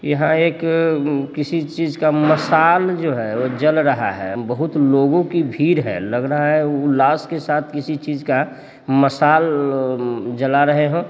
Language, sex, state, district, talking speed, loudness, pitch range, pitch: Bhojpuri, male, Bihar, Sitamarhi, 175 wpm, -18 LUFS, 135-160 Hz, 150 Hz